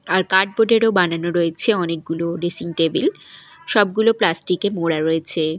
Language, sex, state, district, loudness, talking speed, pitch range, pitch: Bengali, female, Odisha, Malkangiri, -19 LUFS, 140 wpm, 165-205 Hz, 175 Hz